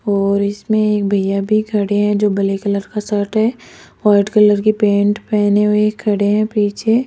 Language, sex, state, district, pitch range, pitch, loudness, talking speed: Hindi, female, Rajasthan, Jaipur, 200-215 Hz, 210 Hz, -15 LUFS, 195 wpm